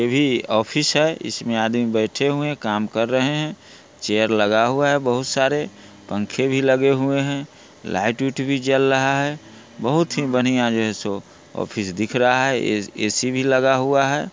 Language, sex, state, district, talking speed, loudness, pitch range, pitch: Hindi, male, Bihar, Muzaffarpur, 185 wpm, -20 LUFS, 110-140 Hz, 130 Hz